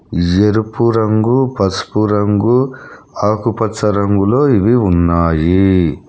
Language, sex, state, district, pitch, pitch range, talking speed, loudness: Telugu, male, Telangana, Hyderabad, 105 Hz, 95-115 Hz, 80 wpm, -14 LUFS